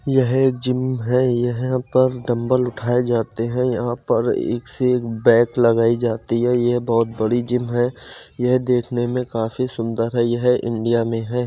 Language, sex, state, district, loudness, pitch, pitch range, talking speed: Hindi, male, Uttar Pradesh, Jyotiba Phule Nagar, -19 LUFS, 120 Hz, 115-125 Hz, 180 wpm